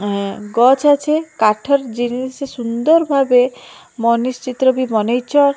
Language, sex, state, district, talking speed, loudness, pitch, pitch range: Odia, female, Odisha, Malkangiri, 120 wpm, -16 LUFS, 255 Hz, 235-280 Hz